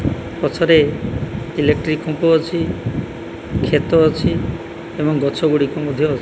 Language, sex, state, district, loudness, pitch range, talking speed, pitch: Odia, male, Odisha, Malkangiri, -18 LUFS, 145-165 Hz, 115 wpm, 155 Hz